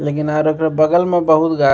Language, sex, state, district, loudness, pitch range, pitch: Maithili, male, Bihar, Begusarai, -15 LUFS, 150-160 Hz, 155 Hz